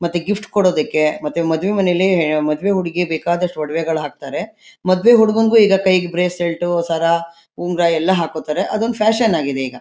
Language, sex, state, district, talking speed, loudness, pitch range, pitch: Kannada, female, Karnataka, Mysore, 145 wpm, -17 LUFS, 160-190 Hz, 175 Hz